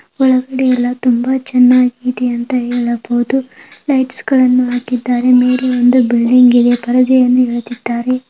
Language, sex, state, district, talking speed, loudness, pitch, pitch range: Kannada, female, Karnataka, Gulbarga, 115 wpm, -13 LUFS, 250 Hz, 245-255 Hz